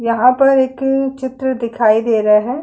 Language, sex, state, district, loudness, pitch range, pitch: Hindi, female, Chhattisgarh, Sukma, -15 LUFS, 230-270 Hz, 255 Hz